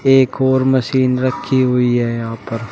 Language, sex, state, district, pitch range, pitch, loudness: Hindi, male, Uttar Pradesh, Shamli, 120-130 Hz, 130 Hz, -16 LUFS